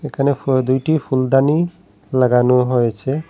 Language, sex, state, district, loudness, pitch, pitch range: Bengali, male, Assam, Hailakandi, -17 LUFS, 130 Hz, 125-150 Hz